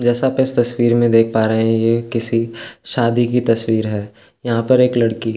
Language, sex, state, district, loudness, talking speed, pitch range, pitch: Hindi, male, Uttarakhand, Tehri Garhwal, -16 LUFS, 210 wpm, 115-120 Hz, 115 Hz